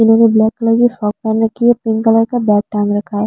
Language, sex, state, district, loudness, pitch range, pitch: Hindi, female, Delhi, New Delhi, -13 LUFS, 210-230 Hz, 225 Hz